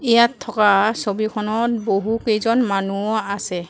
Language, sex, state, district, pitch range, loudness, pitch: Assamese, female, Assam, Kamrup Metropolitan, 200-230 Hz, -19 LUFS, 215 Hz